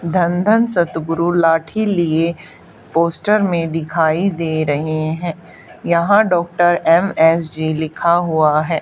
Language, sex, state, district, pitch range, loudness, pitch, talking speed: Hindi, female, Haryana, Charkhi Dadri, 160-175 Hz, -16 LUFS, 170 Hz, 115 wpm